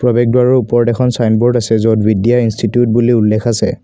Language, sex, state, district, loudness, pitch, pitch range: Assamese, male, Assam, Kamrup Metropolitan, -12 LUFS, 120 Hz, 115-120 Hz